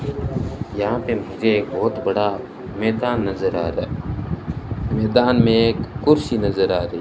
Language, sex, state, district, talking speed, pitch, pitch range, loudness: Hindi, male, Rajasthan, Bikaner, 155 wpm, 110 Hz, 100-125 Hz, -21 LUFS